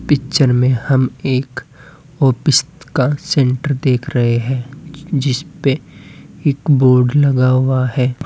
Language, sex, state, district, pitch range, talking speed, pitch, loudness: Hindi, male, Uttar Pradesh, Saharanpur, 130-145 Hz, 115 wpm, 135 Hz, -15 LUFS